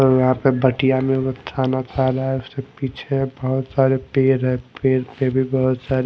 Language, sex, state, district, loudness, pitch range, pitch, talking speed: Hindi, male, Odisha, Malkangiri, -20 LUFS, 130-135 Hz, 130 Hz, 215 wpm